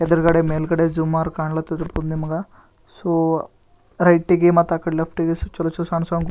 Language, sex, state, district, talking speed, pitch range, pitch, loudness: Kannada, male, Karnataka, Gulbarga, 145 wpm, 160-170 Hz, 165 Hz, -20 LUFS